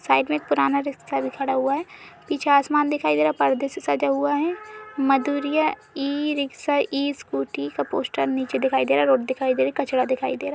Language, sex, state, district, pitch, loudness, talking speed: Hindi, female, Uttar Pradesh, Budaun, 270 Hz, -23 LUFS, 235 wpm